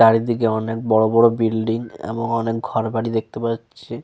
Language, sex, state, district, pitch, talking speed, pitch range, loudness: Bengali, male, Jharkhand, Sahebganj, 115 Hz, 180 wpm, 110-115 Hz, -20 LUFS